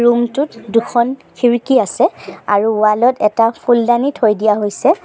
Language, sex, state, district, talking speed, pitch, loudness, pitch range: Assamese, male, Assam, Sonitpur, 155 wpm, 235 Hz, -14 LUFS, 215-255 Hz